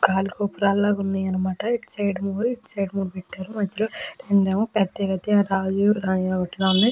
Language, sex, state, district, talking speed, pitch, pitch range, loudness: Telugu, female, Andhra Pradesh, Krishna, 155 wpm, 195 Hz, 190-205 Hz, -23 LUFS